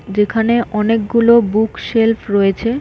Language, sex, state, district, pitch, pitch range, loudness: Bengali, female, West Bengal, North 24 Parganas, 225 Hz, 210-230 Hz, -14 LUFS